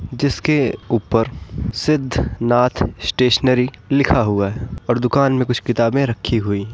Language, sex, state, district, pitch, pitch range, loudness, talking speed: Hindi, male, Bihar, East Champaran, 120 Hz, 115-130 Hz, -18 LUFS, 140 wpm